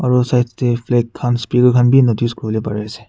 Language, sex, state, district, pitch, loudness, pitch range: Nagamese, male, Nagaland, Kohima, 120 Hz, -16 LUFS, 115-125 Hz